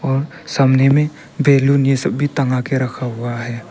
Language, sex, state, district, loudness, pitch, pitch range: Hindi, male, Arunachal Pradesh, Papum Pare, -17 LUFS, 135 Hz, 125-145 Hz